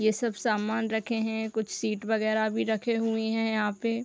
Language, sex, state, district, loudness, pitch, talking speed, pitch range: Hindi, female, Uttar Pradesh, Hamirpur, -28 LUFS, 220 Hz, 220 wpm, 215-225 Hz